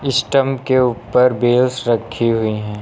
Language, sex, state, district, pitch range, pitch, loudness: Hindi, male, Uttar Pradesh, Lucknow, 115-130 Hz, 125 Hz, -16 LUFS